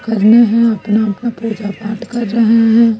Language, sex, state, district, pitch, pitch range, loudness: Hindi, female, Chhattisgarh, Raipur, 225 Hz, 215-230 Hz, -13 LUFS